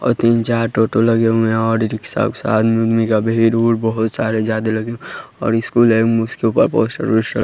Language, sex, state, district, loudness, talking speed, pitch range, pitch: Hindi, male, Bihar, West Champaran, -16 LUFS, 220 wpm, 110-115 Hz, 115 Hz